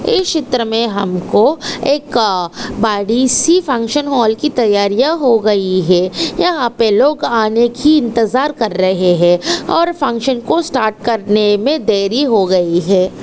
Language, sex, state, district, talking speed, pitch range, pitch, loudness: Hindi, female, Chhattisgarh, Balrampur, 170 wpm, 200-280 Hz, 230 Hz, -13 LUFS